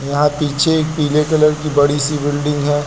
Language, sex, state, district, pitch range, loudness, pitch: Hindi, male, Uttar Pradesh, Lucknow, 145-150 Hz, -16 LUFS, 150 Hz